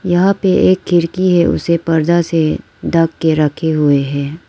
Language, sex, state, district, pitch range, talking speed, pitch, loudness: Hindi, female, Arunachal Pradesh, Lower Dibang Valley, 155-175 Hz, 175 wpm, 165 Hz, -14 LUFS